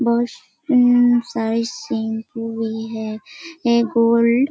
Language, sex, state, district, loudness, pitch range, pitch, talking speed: Hindi, female, Bihar, Kishanganj, -19 LUFS, 225-245 Hz, 235 Hz, 120 wpm